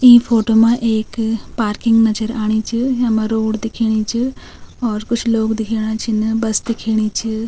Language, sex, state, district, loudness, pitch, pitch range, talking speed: Garhwali, female, Uttarakhand, Tehri Garhwal, -17 LUFS, 225 Hz, 220-230 Hz, 160 wpm